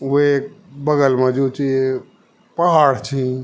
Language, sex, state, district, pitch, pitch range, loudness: Garhwali, male, Uttarakhand, Tehri Garhwal, 140 Hz, 130-155 Hz, -17 LUFS